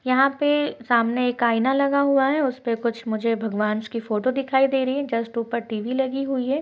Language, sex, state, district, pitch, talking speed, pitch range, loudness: Hindi, female, Uttar Pradesh, Budaun, 250 Hz, 215 wpm, 230-270 Hz, -22 LUFS